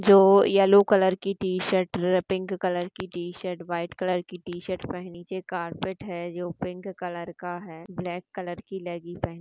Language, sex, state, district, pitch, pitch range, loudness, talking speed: Hindi, female, Chhattisgarh, Sarguja, 180 Hz, 175-190 Hz, -26 LUFS, 180 wpm